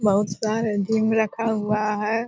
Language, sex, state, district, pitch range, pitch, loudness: Hindi, female, Bihar, Purnia, 210-220 Hz, 215 Hz, -23 LUFS